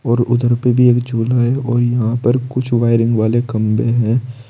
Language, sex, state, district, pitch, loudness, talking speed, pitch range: Hindi, male, Uttar Pradesh, Saharanpur, 120 Hz, -15 LUFS, 200 wpm, 115-125 Hz